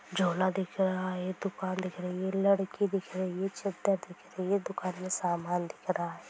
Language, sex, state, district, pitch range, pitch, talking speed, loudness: Hindi, female, Bihar, Sitamarhi, 180-195 Hz, 185 Hz, 210 wpm, -32 LUFS